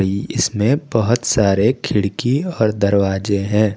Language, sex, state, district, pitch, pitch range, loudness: Hindi, male, Jharkhand, Garhwa, 105 Hz, 100-120 Hz, -17 LUFS